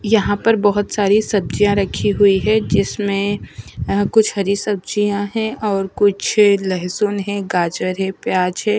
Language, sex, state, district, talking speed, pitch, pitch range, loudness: Hindi, female, Maharashtra, Mumbai Suburban, 155 wpm, 205 Hz, 195-210 Hz, -17 LUFS